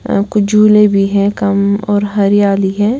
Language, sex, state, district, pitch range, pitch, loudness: Hindi, female, Bihar, West Champaran, 200-210 Hz, 205 Hz, -12 LUFS